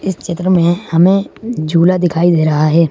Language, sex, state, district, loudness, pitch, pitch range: Hindi, male, Madhya Pradesh, Bhopal, -13 LUFS, 175 Hz, 165-185 Hz